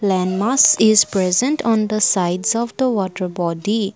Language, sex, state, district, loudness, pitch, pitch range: English, female, Assam, Kamrup Metropolitan, -17 LUFS, 205 Hz, 185-225 Hz